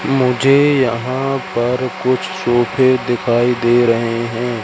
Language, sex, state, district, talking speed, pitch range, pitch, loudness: Hindi, male, Madhya Pradesh, Katni, 115 wpm, 120-130 Hz, 125 Hz, -15 LUFS